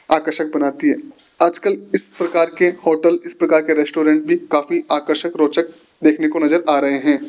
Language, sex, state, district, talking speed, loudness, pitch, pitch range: Hindi, male, Rajasthan, Jaipur, 175 wpm, -17 LUFS, 165 Hz, 155-180 Hz